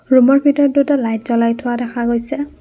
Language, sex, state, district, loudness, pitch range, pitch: Assamese, female, Assam, Kamrup Metropolitan, -15 LUFS, 235-285 Hz, 255 Hz